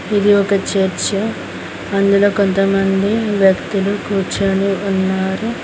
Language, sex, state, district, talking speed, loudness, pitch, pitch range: Telugu, female, Telangana, Mahabubabad, 85 wpm, -16 LUFS, 195 Hz, 195-205 Hz